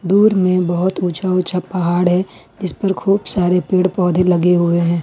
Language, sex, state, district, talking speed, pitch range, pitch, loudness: Hindi, female, Jharkhand, Ranchi, 190 wpm, 175-190 Hz, 180 Hz, -16 LUFS